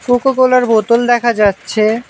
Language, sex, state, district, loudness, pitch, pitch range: Bengali, male, West Bengal, Alipurduar, -12 LUFS, 235 Hz, 220-245 Hz